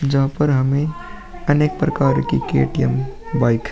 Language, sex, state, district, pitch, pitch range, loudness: Hindi, male, Uttar Pradesh, Muzaffarnagar, 140 Hz, 120-150 Hz, -19 LUFS